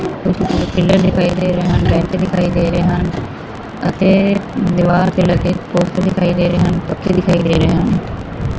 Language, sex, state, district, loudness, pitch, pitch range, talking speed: Punjabi, female, Punjab, Fazilka, -15 LUFS, 180 Hz, 175-185 Hz, 155 wpm